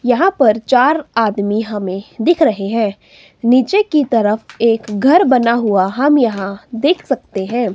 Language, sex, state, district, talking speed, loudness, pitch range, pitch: Hindi, female, Himachal Pradesh, Shimla, 155 wpm, -15 LUFS, 210-275 Hz, 230 Hz